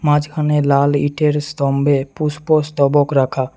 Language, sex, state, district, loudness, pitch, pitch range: Bengali, male, West Bengal, Alipurduar, -16 LUFS, 145 Hz, 140-150 Hz